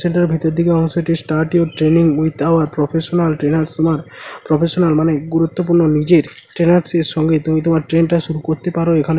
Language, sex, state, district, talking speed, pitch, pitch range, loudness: Bengali, male, West Bengal, Paschim Medinipur, 185 wpm, 160 Hz, 155-170 Hz, -15 LUFS